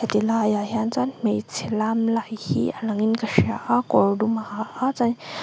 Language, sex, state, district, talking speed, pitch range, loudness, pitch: Mizo, female, Mizoram, Aizawl, 220 wpm, 210-225 Hz, -23 LUFS, 220 Hz